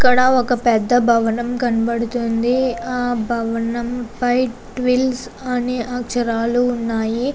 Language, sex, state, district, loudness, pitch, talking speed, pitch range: Telugu, female, Andhra Pradesh, Chittoor, -19 LUFS, 245 Hz, 100 wpm, 235-250 Hz